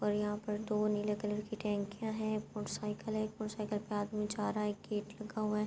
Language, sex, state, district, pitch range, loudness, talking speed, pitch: Urdu, female, Andhra Pradesh, Anantapur, 210-215 Hz, -38 LUFS, 255 wpm, 210 Hz